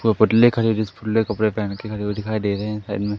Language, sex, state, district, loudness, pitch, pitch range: Hindi, male, Madhya Pradesh, Katni, -21 LUFS, 110 Hz, 105-110 Hz